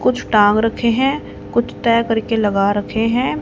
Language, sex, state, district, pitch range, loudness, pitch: Hindi, female, Haryana, Rohtak, 215-245 Hz, -17 LUFS, 230 Hz